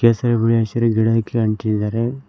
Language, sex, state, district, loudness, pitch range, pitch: Kannada, male, Karnataka, Koppal, -18 LUFS, 110-115 Hz, 115 Hz